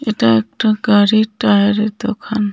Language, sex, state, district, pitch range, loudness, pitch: Bengali, female, West Bengal, Cooch Behar, 205-220 Hz, -15 LUFS, 215 Hz